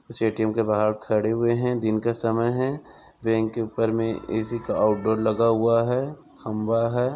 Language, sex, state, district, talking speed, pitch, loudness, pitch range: Hindi, male, Chhattisgarh, Bilaspur, 200 wpm, 115 Hz, -24 LUFS, 110-120 Hz